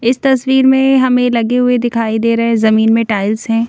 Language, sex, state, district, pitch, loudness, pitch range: Hindi, female, Madhya Pradesh, Bhopal, 235 Hz, -12 LUFS, 225-250 Hz